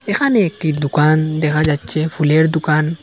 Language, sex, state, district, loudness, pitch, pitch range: Bengali, male, Assam, Hailakandi, -16 LUFS, 155 Hz, 150-160 Hz